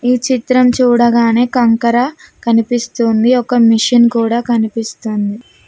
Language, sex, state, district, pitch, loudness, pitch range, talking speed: Telugu, female, Telangana, Mahabubabad, 235 Hz, -13 LUFS, 230-245 Hz, 95 wpm